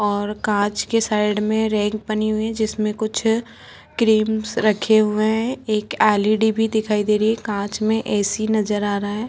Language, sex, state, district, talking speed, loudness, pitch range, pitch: Hindi, female, Maharashtra, Chandrapur, 195 wpm, -20 LUFS, 210-220 Hz, 215 Hz